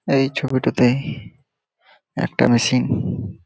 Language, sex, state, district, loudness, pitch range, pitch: Bengali, male, West Bengal, Malda, -19 LUFS, 120-135 Hz, 125 Hz